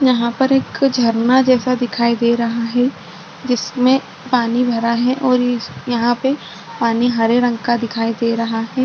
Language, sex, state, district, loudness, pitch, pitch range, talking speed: Hindi, female, Maharashtra, Chandrapur, -17 LUFS, 240 Hz, 230-255 Hz, 170 wpm